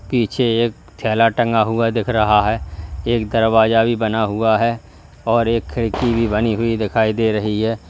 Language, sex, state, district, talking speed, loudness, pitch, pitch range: Hindi, male, Uttar Pradesh, Lalitpur, 180 wpm, -17 LUFS, 115 Hz, 105-115 Hz